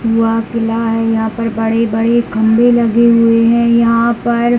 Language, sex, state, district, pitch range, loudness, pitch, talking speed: Hindi, male, Chhattisgarh, Bilaspur, 225-235 Hz, -12 LUFS, 230 Hz, 170 wpm